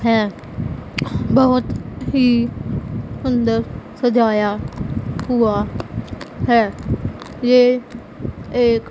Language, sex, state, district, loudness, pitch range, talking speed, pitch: Hindi, female, Punjab, Pathankot, -19 LUFS, 225-250 Hz, 60 wpm, 235 Hz